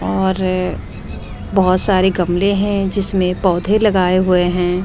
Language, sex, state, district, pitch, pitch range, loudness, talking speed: Hindi, female, Delhi, New Delhi, 185 Hz, 180-190 Hz, -15 LUFS, 125 wpm